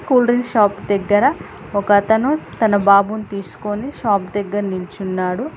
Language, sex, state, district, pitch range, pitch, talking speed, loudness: Telugu, female, Telangana, Hyderabad, 200-220 Hz, 205 Hz, 130 wpm, -17 LUFS